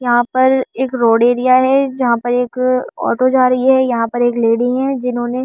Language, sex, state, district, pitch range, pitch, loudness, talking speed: Hindi, female, Delhi, New Delhi, 240-260 Hz, 250 Hz, -14 LUFS, 210 wpm